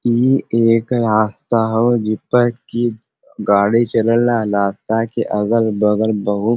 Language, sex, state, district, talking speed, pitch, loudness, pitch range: Bhojpuri, male, Uttar Pradesh, Varanasi, 130 wpm, 115 Hz, -16 LUFS, 110-120 Hz